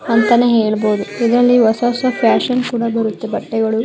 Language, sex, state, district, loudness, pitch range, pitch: Kannada, female, Karnataka, Mysore, -15 LUFS, 220-240 Hz, 230 Hz